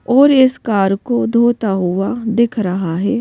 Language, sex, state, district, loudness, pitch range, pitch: Hindi, female, Madhya Pradesh, Bhopal, -15 LUFS, 195-240 Hz, 230 Hz